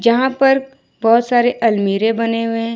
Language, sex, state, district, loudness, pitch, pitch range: Hindi, female, Jharkhand, Ranchi, -15 LUFS, 230 Hz, 230-245 Hz